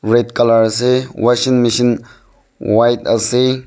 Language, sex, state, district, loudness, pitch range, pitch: Nagamese, male, Nagaland, Dimapur, -14 LUFS, 115-125 Hz, 120 Hz